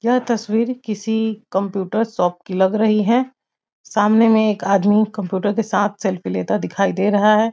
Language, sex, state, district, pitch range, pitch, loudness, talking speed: Hindi, female, Bihar, Muzaffarpur, 195-225 Hz, 210 Hz, -18 LUFS, 185 wpm